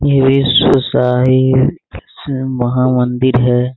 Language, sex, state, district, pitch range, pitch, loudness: Hindi, male, Bihar, Saran, 125-135 Hz, 130 Hz, -13 LUFS